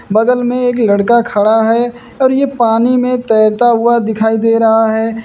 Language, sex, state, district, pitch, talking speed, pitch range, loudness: Hindi, male, Uttar Pradesh, Lucknow, 230 Hz, 185 wpm, 220-245 Hz, -11 LUFS